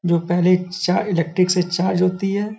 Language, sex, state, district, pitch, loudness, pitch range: Hindi, male, Uttar Pradesh, Gorakhpur, 180 Hz, -19 LUFS, 175-185 Hz